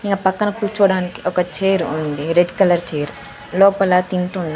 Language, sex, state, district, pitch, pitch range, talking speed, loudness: Telugu, female, Andhra Pradesh, Sri Satya Sai, 180 Hz, 165-195 Hz, 145 wpm, -18 LUFS